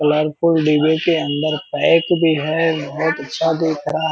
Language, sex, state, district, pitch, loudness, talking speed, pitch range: Hindi, male, Bihar, Purnia, 160 Hz, -17 LUFS, 175 wpm, 150-165 Hz